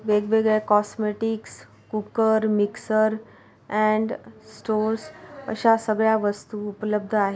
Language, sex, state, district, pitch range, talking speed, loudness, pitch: Marathi, female, Maharashtra, Pune, 210-220 Hz, 90 wpm, -23 LUFS, 215 Hz